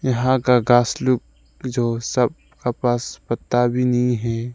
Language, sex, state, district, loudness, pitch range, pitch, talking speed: Hindi, male, Arunachal Pradesh, Lower Dibang Valley, -20 LUFS, 115-125 Hz, 120 Hz, 145 wpm